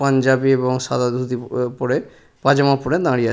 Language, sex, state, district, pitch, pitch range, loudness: Bengali, male, West Bengal, Purulia, 130 Hz, 125-135 Hz, -19 LUFS